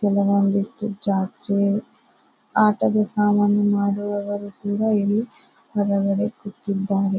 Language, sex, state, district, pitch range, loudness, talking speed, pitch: Kannada, female, Karnataka, Bijapur, 200-210 Hz, -22 LUFS, 90 wpm, 205 Hz